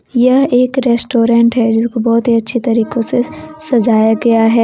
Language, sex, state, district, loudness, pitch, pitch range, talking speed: Hindi, female, Jharkhand, Deoghar, -12 LUFS, 235 Hz, 230-250 Hz, 155 wpm